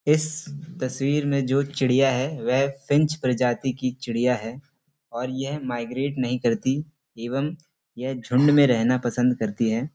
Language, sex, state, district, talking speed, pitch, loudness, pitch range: Hindi, male, Uttar Pradesh, Hamirpur, 150 wpm, 130 Hz, -24 LUFS, 125-145 Hz